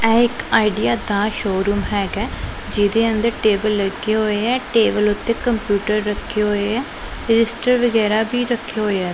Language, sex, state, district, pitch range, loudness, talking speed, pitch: Punjabi, female, Punjab, Pathankot, 205-230 Hz, -19 LUFS, 165 wpm, 215 Hz